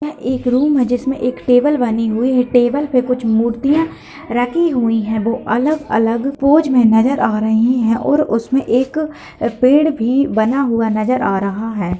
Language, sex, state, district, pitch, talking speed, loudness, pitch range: Hindi, female, Uttar Pradesh, Gorakhpur, 245 Hz, 185 wpm, -15 LUFS, 225-275 Hz